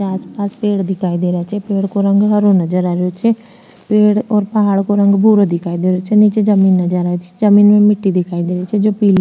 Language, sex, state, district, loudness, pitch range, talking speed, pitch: Rajasthani, female, Rajasthan, Nagaur, -14 LUFS, 180-210 Hz, 260 wpm, 200 Hz